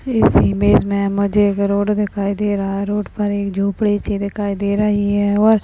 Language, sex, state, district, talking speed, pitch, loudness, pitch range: Hindi, female, Rajasthan, Churu, 225 wpm, 200 Hz, -17 LUFS, 200-205 Hz